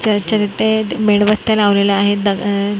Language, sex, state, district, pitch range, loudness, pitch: Marathi, female, Maharashtra, Mumbai Suburban, 200-215 Hz, -15 LUFS, 205 Hz